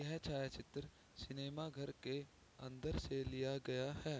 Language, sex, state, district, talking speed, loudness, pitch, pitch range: Hindi, male, Bihar, Sitamarhi, 145 wpm, -46 LUFS, 135 Hz, 130-145 Hz